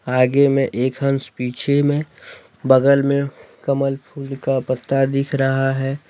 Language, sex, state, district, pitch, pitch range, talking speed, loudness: Hindi, male, Jharkhand, Deoghar, 135 Hz, 130-140 Hz, 145 wpm, -19 LUFS